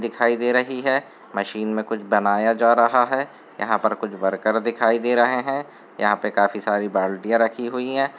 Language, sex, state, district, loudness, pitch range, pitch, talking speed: Hindi, male, Bihar, Gopalganj, -21 LUFS, 105-125 Hz, 115 Hz, 200 wpm